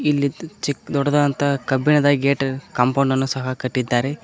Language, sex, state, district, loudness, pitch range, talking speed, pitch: Kannada, male, Karnataka, Koppal, -20 LUFS, 130-145 Hz, 125 wpm, 140 Hz